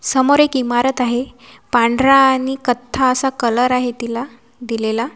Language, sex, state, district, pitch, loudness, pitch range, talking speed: Marathi, female, Maharashtra, Washim, 250 Hz, -16 LUFS, 240-265 Hz, 140 wpm